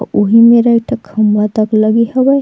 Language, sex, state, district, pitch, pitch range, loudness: Chhattisgarhi, female, Chhattisgarh, Sukma, 225 Hz, 215-235 Hz, -11 LUFS